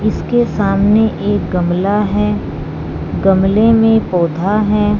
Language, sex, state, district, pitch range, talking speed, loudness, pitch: Hindi, female, Punjab, Fazilka, 195-215 Hz, 110 wpm, -14 LUFS, 205 Hz